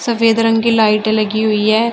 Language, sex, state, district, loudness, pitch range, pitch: Hindi, female, Uttar Pradesh, Shamli, -14 LUFS, 215-230 Hz, 220 Hz